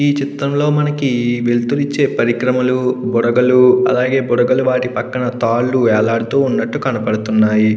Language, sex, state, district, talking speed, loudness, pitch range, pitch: Telugu, male, Andhra Pradesh, Krishna, 110 wpm, -15 LUFS, 120-130 Hz, 125 Hz